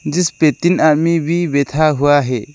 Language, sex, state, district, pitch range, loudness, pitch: Hindi, male, Arunachal Pradesh, Lower Dibang Valley, 145-165 Hz, -14 LUFS, 155 Hz